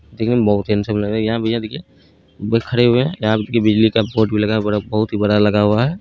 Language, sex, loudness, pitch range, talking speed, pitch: Maithili, male, -17 LUFS, 105-115 Hz, 240 wpm, 110 Hz